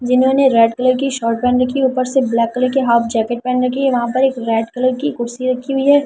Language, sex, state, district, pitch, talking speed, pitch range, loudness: Hindi, female, Delhi, New Delhi, 255 Hz, 275 wpm, 235-265 Hz, -16 LUFS